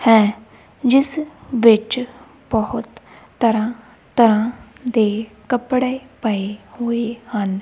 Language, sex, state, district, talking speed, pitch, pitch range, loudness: Punjabi, female, Punjab, Kapurthala, 85 wpm, 235 Hz, 220-250 Hz, -19 LUFS